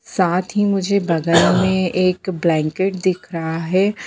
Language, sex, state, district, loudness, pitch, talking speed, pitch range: Hindi, female, Bihar, Sitamarhi, -18 LUFS, 185 Hz, 145 wpm, 170-190 Hz